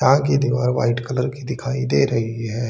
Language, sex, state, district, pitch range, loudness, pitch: Hindi, male, Haryana, Charkhi Dadri, 120-135 Hz, -20 LUFS, 125 Hz